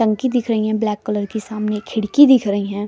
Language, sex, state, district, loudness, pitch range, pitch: Hindi, female, Delhi, New Delhi, -18 LUFS, 210-225 Hz, 215 Hz